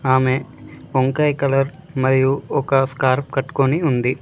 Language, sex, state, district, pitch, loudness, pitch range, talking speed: Telugu, male, Telangana, Mahabubabad, 135 Hz, -19 LUFS, 130-140 Hz, 115 wpm